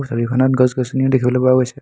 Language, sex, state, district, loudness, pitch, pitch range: Assamese, male, Assam, Hailakandi, -16 LUFS, 130 Hz, 125-130 Hz